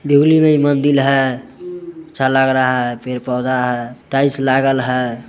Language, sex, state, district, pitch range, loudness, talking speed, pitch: Hindi, male, Bihar, Muzaffarpur, 125-145 Hz, -15 LUFS, 135 wpm, 135 Hz